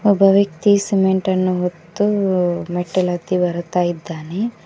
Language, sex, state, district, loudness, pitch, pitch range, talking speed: Kannada, female, Karnataka, Koppal, -18 LUFS, 185 Hz, 175-195 Hz, 115 wpm